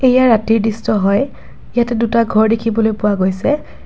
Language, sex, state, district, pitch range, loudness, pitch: Assamese, female, Assam, Kamrup Metropolitan, 215-235 Hz, -15 LUFS, 225 Hz